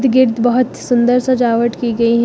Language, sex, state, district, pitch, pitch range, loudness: Hindi, female, Uttar Pradesh, Lucknow, 245 Hz, 235-255 Hz, -14 LUFS